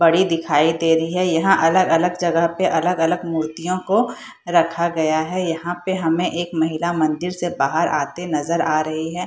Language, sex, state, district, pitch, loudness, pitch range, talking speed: Hindi, female, Bihar, Saharsa, 170 Hz, -19 LUFS, 160-180 Hz, 180 wpm